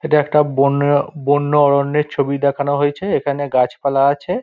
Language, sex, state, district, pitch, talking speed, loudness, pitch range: Bengali, male, West Bengal, Dakshin Dinajpur, 145 Hz, 160 wpm, -16 LUFS, 140-150 Hz